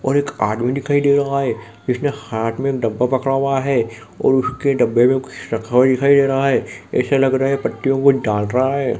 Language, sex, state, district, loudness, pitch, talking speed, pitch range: Hindi, male, West Bengal, Kolkata, -18 LUFS, 135 Hz, 225 wpm, 120-140 Hz